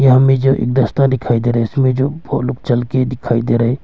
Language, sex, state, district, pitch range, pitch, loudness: Hindi, male, Arunachal Pradesh, Longding, 120-135 Hz, 130 Hz, -15 LUFS